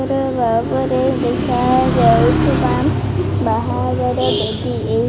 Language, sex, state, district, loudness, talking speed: Odia, female, Odisha, Malkangiri, -16 LUFS, 95 wpm